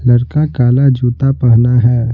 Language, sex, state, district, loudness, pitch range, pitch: Hindi, male, Bihar, Patna, -11 LUFS, 120-135 Hz, 125 Hz